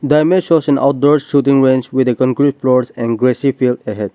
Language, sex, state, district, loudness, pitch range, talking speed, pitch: English, male, Nagaland, Dimapur, -14 LUFS, 125-145 Hz, 215 wpm, 130 Hz